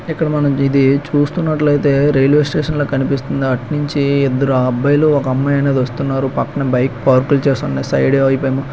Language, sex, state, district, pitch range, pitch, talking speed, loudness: Telugu, male, Andhra Pradesh, Krishna, 135-145 Hz, 140 Hz, 125 wpm, -15 LUFS